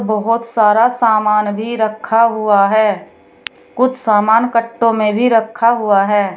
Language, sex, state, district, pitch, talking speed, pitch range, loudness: Hindi, female, Uttar Pradesh, Shamli, 220 Hz, 140 wpm, 210-230 Hz, -14 LUFS